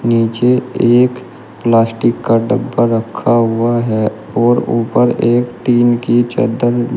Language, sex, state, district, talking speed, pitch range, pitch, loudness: Hindi, male, Uttar Pradesh, Shamli, 130 wpm, 115-120 Hz, 120 Hz, -14 LUFS